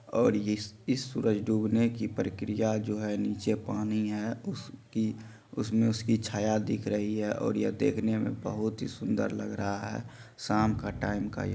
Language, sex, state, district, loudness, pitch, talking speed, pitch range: Angika, male, Bihar, Supaul, -31 LUFS, 110 Hz, 170 wpm, 105-110 Hz